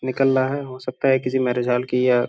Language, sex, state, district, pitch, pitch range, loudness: Hindi, male, Uttar Pradesh, Gorakhpur, 130 Hz, 125-130 Hz, -21 LUFS